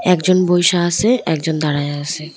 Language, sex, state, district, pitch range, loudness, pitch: Bengali, female, West Bengal, Cooch Behar, 155-180 Hz, -16 LUFS, 175 Hz